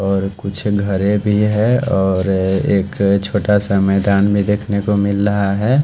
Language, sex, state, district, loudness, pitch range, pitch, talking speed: Hindi, male, Haryana, Charkhi Dadri, -16 LUFS, 100-105 Hz, 100 Hz, 175 wpm